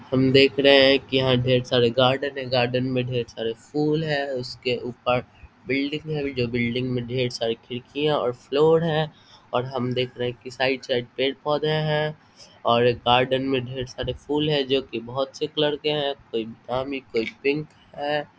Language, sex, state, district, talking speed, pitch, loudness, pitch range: Hindi, male, Bihar, Vaishali, 195 wpm, 130 Hz, -23 LUFS, 125-140 Hz